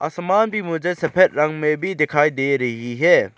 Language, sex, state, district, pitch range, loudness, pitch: Hindi, male, Arunachal Pradesh, Lower Dibang Valley, 145-185 Hz, -19 LUFS, 155 Hz